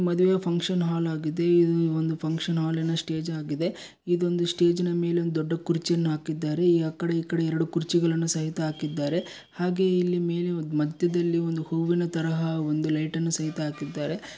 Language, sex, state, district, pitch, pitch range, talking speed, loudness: Kannada, male, Karnataka, Bellary, 165 Hz, 160-175 Hz, 135 wpm, -26 LUFS